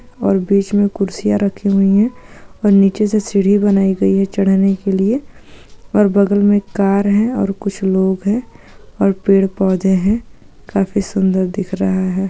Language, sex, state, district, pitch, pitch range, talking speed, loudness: Hindi, female, Andhra Pradesh, Guntur, 195 Hz, 195-205 Hz, 175 wpm, -15 LUFS